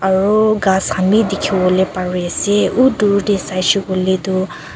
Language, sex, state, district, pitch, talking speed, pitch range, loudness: Nagamese, female, Nagaland, Kohima, 190 Hz, 175 wpm, 185-205 Hz, -15 LUFS